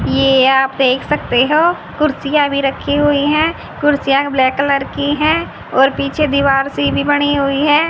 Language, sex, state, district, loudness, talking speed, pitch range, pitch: Hindi, female, Haryana, Jhajjar, -14 LUFS, 165 wpm, 270-295 Hz, 280 Hz